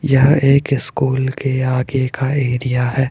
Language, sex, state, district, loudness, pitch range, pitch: Hindi, male, Rajasthan, Jaipur, -16 LUFS, 130-140 Hz, 135 Hz